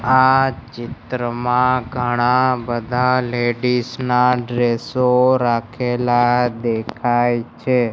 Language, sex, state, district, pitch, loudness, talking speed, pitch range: Gujarati, male, Gujarat, Gandhinagar, 125 Hz, -18 LUFS, 75 wpm, 120-125 Hz